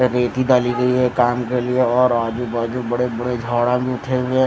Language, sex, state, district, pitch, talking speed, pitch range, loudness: Hindi, male, Odisha, Nuapada, 125 Hz, 240 wpm, 120-125 Hz, -19 LUFS